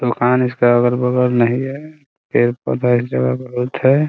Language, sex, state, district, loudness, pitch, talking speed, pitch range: Hindi, male, Bihar, Muzaffarpur, -16 LUFS, 125 Hz, 205 wpm, 120-130 Hz